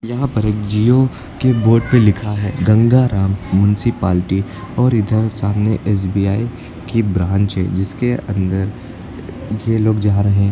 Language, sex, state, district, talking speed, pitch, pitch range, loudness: Hindi, male, Uttar Pradesh, Lucknow, 135 wpm, 105 Hz, 95-115 Hz, -16 LUFS